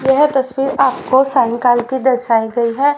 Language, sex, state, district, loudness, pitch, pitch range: Hindi, male, Haryana, Charkhi Dadri, -14 LUFS, 260 Hz, 240-270 Hz